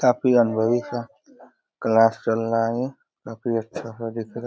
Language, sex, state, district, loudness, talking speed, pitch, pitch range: Hindi, male, Uttar Pradesh, Deoria, -23 LUFS, 145 wpm, 115 Hz, 115-120 Hz